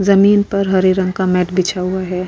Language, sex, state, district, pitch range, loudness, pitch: Hindi, female, Uttar Pradesh, Hamirpur, 185-195 Hz, -15 LUFS, 190 Hz